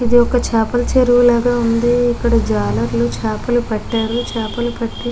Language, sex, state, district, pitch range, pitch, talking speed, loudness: Telugu, female, Andhra Pradesh, Guntur, 220-240 Hz, 235 Hz, 165 wpm, -16 LUFS